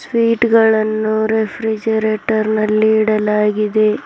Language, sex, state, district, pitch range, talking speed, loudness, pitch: Kannada, female, Karnataka, Bidar, 215-220 Hz, 75 wpm, -15 LUFS, 215 Hz